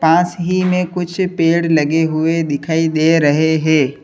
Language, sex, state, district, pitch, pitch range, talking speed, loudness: Hindi, male, Uttar Pradesh, Lalitpur, 165 Hz, 155-175 Hz, 165 wpm, -15 LUFS